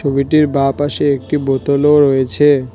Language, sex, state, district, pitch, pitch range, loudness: Bengali, male, West Bengal, Cooch Behar, 140 Hz, 135-145 Hz, -13 LUFS